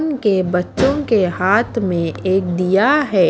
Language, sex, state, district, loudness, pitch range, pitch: Hindi, female, Haryana, Charkhi Dadri, -16 LUFS, 180-235 Hz, 195 Hz